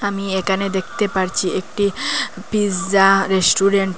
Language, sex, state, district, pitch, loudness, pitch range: Bengali, female, Assam, Hailakandi, 195 Hz, -18 LUFS, 190-200 Hz